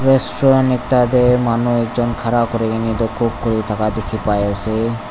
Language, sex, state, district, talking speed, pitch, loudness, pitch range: Nagamese, male, Nagaland, Dimapur, 165 wpm, 115 Hz, -16 LUFS, 110-125 Hz